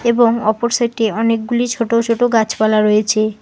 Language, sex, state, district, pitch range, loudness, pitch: Bengali, female, West Bengal, Alipurduar, 215-235 Hz, -15 LUFS, 230 Hz